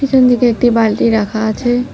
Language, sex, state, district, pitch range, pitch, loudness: Bengali, female, West Bengal, Cooch Behar, 220-245 Hz, 240 Hz, -13 LUFS